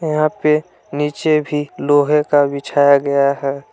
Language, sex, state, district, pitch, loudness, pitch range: Hindi, male, Jharkhand, Palamu, 145 Hz, -16 LUFS, 140-150 Hz